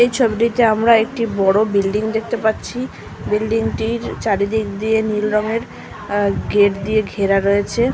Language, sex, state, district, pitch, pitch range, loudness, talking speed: Bengali, female, West Bengal, Malda, 215 Hz, 205-230 Hz, -18 LUFS, 135 wpm